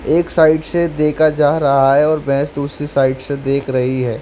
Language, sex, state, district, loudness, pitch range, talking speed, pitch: Hindi, male, Jharkhand, Jamtara, -15 LUFS, 135-155 Hz, 215 wpm, 145 Hz